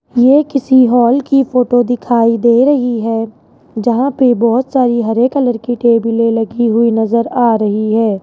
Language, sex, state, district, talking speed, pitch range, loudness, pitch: Hindi, male, Rajasthan, Jaipur, 170 wpm, 230-255 Hz, -12 LUFS, 240 Hz